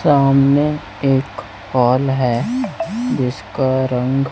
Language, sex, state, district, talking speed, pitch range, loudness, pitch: Hindi, male, Chhattisgarh, Raipur, 85 wpm, 125-145 Hz, -17 LUFS, 135 Hz